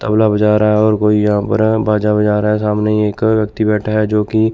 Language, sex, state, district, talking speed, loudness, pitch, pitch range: Hindi, male, Chandigarh, Chandigarh, 250 wpm, -14 LUFS, 105 Hz, 105-110 Hz